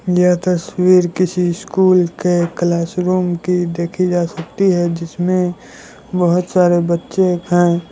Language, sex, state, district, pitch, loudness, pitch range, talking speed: Hindi, male, Bihar, Muzaffarpur, 180 Hz, -16 LUFS, 175-185 Hz, 120 wpm